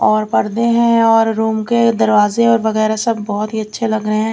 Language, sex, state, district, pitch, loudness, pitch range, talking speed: Hindi, female, Chandigarh, Chandigarh, 220 Hz, -14 LUFS, 215-230 Hz, 210 wpm